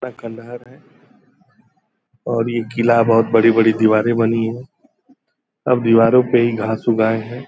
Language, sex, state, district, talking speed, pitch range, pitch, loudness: Hindi, male, Bihar, Purnia, 150 wpm, 115-120 Hz, 115 Hz, -16 LUFS